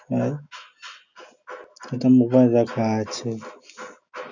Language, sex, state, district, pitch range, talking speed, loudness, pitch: Bengali, male, West Bengal, Jhargram, 110-130 Hz, 85 wpm, -21 LUFS, 125 Hz